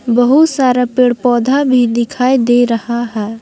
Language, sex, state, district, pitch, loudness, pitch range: Hindi, female, Jharkhand, Palamu, 245 Hz, -12 LUFS, 235-255 Hz